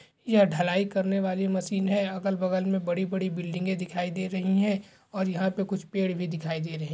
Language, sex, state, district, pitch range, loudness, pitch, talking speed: Hindi, male, Bihar, Gaya, 180-195 Hz, -28 LUFS, 190 Hz, 225 wpm